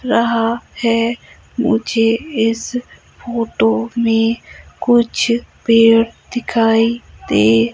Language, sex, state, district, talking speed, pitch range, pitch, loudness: Hindi, female, Madhya Pradesh, Umaria, 80 wpm, 225-235 Hz, 230 Hz, -16 LUFS